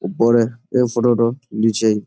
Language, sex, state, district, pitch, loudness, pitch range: Bengali, male, West Bengal, Jalpaiguri, 115 Hz, -17 LUFS, 110-120 Hz